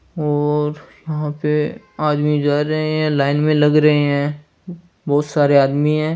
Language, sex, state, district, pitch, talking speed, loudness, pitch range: Hindi, male, Rajasthan, Churu, 150 Hz, 155 wpm, -17 LUFS, 145-155 Hz